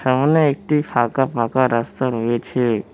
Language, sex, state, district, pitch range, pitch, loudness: Bengali, male, West Bengal, Cooch Behar, 115-135 Hz, 130 Hz, -19 LUFS